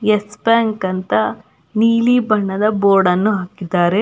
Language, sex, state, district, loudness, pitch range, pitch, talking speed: Kannada, female, Karnataka, Belgaum, -16 LUFS, 185-215 Hz, 205 Hz, 105 wpm